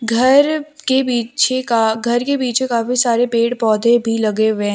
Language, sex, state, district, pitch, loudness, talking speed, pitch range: Hindi, female, Jharkhand, Deoghar, 240 Hz, -16 LUFS, 190 wpm, 230-260 Hz